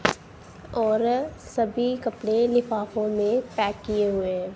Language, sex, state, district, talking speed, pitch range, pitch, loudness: Hindi, female, Punjab, Kapurthala, 120 wpm, 210-240 Hz, 220 Hz, -25 LUFS